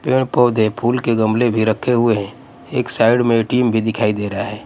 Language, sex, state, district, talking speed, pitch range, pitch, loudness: Hindi, male, Odisha, Nuapada, 220 wpm, 110-120 Hz, 115 Hz, -17 LUFS